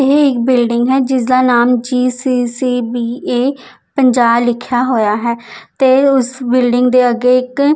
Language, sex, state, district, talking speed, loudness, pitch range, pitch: Punjabi, female, Chandigarh, Chandigarh, 160 wpm, -13 LUFS, 240-260 Hz, 250 Hz